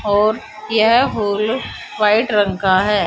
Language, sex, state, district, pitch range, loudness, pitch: Hindi, female, Haryana, Charkhi Dadri, 205-220 Hz, -16 LUFS, 215 Hz